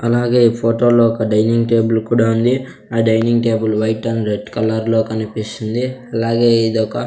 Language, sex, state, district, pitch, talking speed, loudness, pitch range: Telugu, male, Andhra Pradesh, Sri Satya Sai, 115 Hz, 180 wpm, -16 LUFS, 110-115 Hz